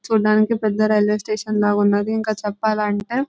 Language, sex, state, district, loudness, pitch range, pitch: Telugu, female, Telangana, Nalgonda, -19 LUFS, 210-220 Hz, 215 Hz